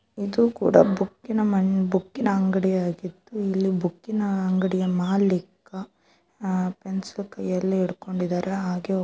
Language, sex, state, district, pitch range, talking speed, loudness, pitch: Kannada, female, Karnataka, Chamarajanagar, 185-200 Hz, 100 wpm, -24 LUFS, 190 Hz